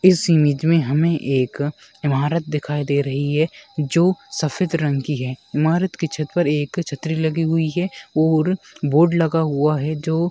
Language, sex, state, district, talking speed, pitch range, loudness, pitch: Hindi, female, West Bengal, Dakshin Dinajpur, 180 wpm, 145-165 Hz, -20 LUFS, 155 Hz